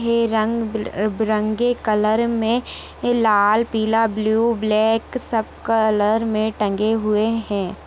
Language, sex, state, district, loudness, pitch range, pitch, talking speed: Hindi, female, Chhattisgarh, Jashpur, -19 LUFS, 215-230 Hz, 220 Hz, 115 wpm